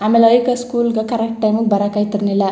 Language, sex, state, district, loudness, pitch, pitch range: Kannada, female, Karnataka, Chamarajanagar, -16 LUFS, 220 Hz, 205-235 Hz